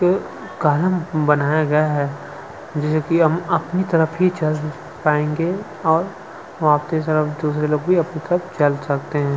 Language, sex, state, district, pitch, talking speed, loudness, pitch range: Hindi, male, Chhattisgarh, Sukma, 155 Hz, 155 wpm, -19 LUFS, 150-170 Hz